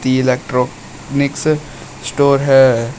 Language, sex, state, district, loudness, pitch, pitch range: Hindi, male, Uttar Pradesh, Shamli, -15 LUFS, 135 Hz, 125-140 Hz